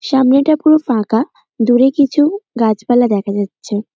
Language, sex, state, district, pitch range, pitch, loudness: Bengali, male, West Bengal, North 24 Parganas, 220-295 Hz, 245 Hz, -14 LUFS